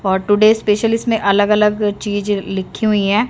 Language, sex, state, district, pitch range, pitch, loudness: Hindi, female, Haryana, Rohtak, 200-215 Hz, 210 Hz, -15 LUFS